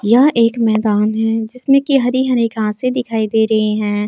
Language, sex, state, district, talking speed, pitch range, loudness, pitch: Hindi, female, Jharkhand, Palamu, 190 wpm, 215-250 Hz, -15 LUFS, 225 Hz